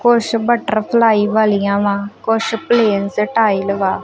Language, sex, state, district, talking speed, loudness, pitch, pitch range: Punjabi, female, Punjab, Kapurthala, 120 wpm, -15 LUFS, 215 Hz, 200-225 Hz